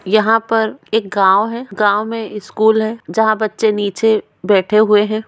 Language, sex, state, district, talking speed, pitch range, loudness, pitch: Hindi, female, Bihar, Bhagalpur, 150 wpm, 205-220 Hz, -15 LUFS, 215 Hz